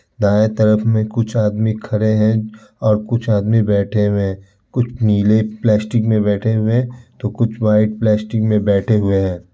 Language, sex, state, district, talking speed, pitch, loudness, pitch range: Hindi, male, Bihar, Kishanganj, 175 wpm, 110 Hz, -16 LUFS, 105-110 Hz